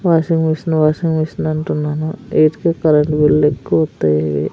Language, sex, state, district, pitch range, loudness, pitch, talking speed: Telugu, female, Andhra Pradesh, Sri Satya Sai, 150-160 Hz, -16 LUFS, 155 Hz, 135 wpm